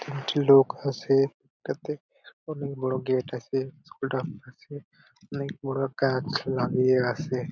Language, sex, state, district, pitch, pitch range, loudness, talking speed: Bengali, male, West Bengal, Purulia, 135 Hz, 130-145 Hz, -26 LUFS, 125 wpm